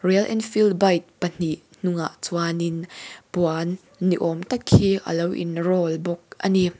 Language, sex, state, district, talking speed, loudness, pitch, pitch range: Mizo, female, Mizoram, Aizawl, 160 wpm, -23 LUFS, 175 Hz, 170-185 Hz